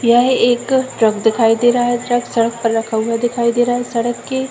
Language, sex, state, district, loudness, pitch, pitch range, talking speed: Hindi, female, Chhattisgarh, Raigarh, -16 LUFS, 240 Hz, 230-245 Hz, 250 wpm